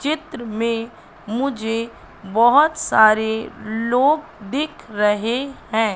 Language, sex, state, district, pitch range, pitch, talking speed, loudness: Hindi, female, Madhya Pradesh, Katni, 220-280 Hz, 230 Hz, 90 wpm, -19 LUFS